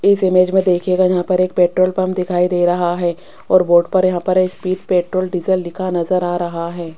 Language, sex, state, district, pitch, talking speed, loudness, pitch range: Hindi, female, Rajasthan, Jaipur, 180 Hz, 230 wpm, -16 LUFS, 175-185 Hz